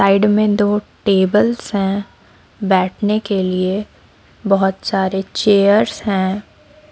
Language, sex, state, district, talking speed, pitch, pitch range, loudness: Hindi, female, Odisha, Sambalpur, 105 wpm, 200 Hz, 190-210 Hz, -16 LUFS